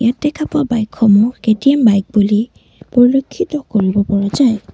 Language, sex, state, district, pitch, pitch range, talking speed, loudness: Assamese, female, Assam, Sonitpur, 235 Hz, 210-270 Hz, 115 wpm, -14 LUFS